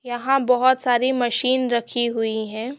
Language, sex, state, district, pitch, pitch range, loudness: Hindi, female, Chhattisgarh, Korba, 245 Hz, 235-260 Hz, -20 LUFS